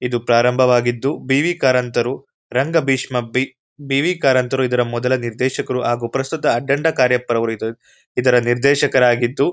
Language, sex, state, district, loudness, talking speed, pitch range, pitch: Kannada, male, Karnataka, Mysore, -18 LUFS, 105 wpm, 120-135 Hz, 125 Hz